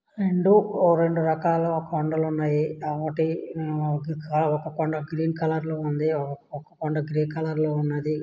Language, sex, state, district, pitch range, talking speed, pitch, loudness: Telugu, male, Andhra Pradesh, Srikakulam, 150-160 Hz, 115 wpm, 155 Hz, -25 LUFS